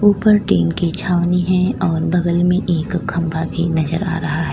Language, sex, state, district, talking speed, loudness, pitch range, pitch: Hindi, female, Uttar Pradesh, Lalitpur, 200 wpm, -17 LUFS, 165-180 Hz, 175 Hz